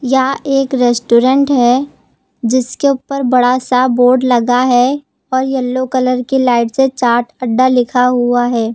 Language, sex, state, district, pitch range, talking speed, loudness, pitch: Hindi, female, Uttar Pradesh, Lucknow, 245-265 Hz, 150 wpm, -13 LUFS, 255 Hz